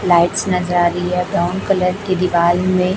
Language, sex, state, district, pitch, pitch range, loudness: Hindi, female, Chhattisgarh, Raipur, 180 Hz, 175-185 Hz, -16 LUFS